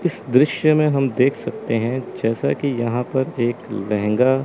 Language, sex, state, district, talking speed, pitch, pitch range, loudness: Hindi, male, Chandigarh, Chandigarh, 175 wpm, 125 Hz, 120-135 Hz, -20 LUFS